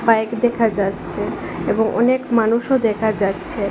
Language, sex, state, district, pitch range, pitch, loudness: Bengali, female, Assam, Hailakandi, 215-235 Hz, 225 Hz, -19 LUFS